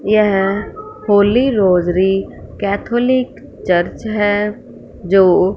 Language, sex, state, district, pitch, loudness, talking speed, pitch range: Hindi, female, Punjab, Fazilka, 205 Hz, -15 LUFS, 75 wpm, 195-220 Hz